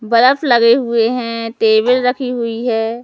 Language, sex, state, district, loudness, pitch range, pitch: Hindi, male, Madhya Pradesh, Katni, -14 LUFS, 230-250 Hz, 235 Hz